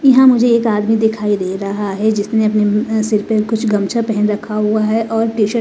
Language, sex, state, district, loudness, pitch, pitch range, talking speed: Hindi, female, Himachal Pradesh, Shimla, -15 LUFS, 215 Hz, 210-225 Hz, 215 wpm